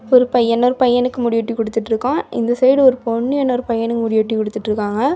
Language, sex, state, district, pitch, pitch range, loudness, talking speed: Tamil, female, Tamil Nadu, Kanyakumari, 235 Hz, 225-255 Hz, -17 LUFS, 185 wpm